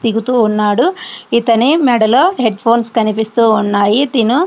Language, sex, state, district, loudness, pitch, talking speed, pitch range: Telugu, female, Andhra Pradesh, Srikakulam, -12 LUFS, 230 Hz, 135 wpm, 220-255 Hz